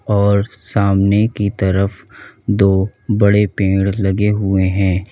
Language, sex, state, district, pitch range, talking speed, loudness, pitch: Hindi, male, Uttar Pradesh, Lalitpur, 95-105 Hz, 115 wpm, -15 LUFS, 100 Hz